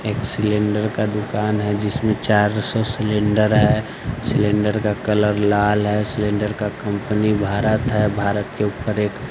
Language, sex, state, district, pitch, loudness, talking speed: Hindi, male, Bihar, West Champaran, 105 Hz, -19 LUFS, 155 wpm